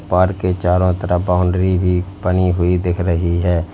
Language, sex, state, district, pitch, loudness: Hindi, male, Uttar Pradesh, Lalitpur, 90 Hz, -17 LUFS